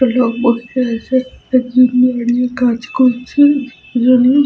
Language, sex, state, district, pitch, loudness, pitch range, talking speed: Bengali, female, West Bengal, Jhargram, 250 Hz, -14 LUFS, 245-255 Hz, 40 wpm